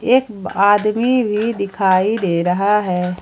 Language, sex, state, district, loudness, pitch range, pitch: Hindi, female, Jharkhand, Ranchi, -16 LUFS, 185-220 Hz, 205 Hz